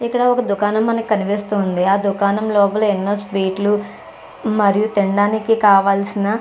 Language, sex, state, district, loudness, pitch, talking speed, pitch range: Telugu, female, Andhra Pradesh, Chittoor, -17 LUFS, 205 Hz, 150 wpm, 200-215 Hz